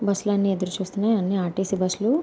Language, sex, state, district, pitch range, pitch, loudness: Telugu, female, Andhra Pradesh, Anantapur, 190-205 Hz, 195 Hz, -24 LUFS